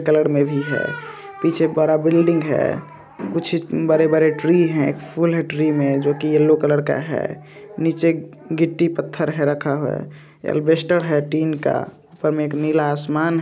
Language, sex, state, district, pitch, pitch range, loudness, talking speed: Hindi, male, Andhra Pradesh, Visakhapatnam, 155 Hz, 150-165 Hz, -19 LUFS, 160 wpm